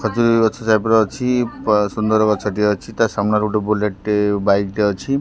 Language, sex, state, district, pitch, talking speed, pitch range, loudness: Odia, male, Odisha, Khordha, 105 Hz, 195 wpm, 105-115 Hz, -18 LUFS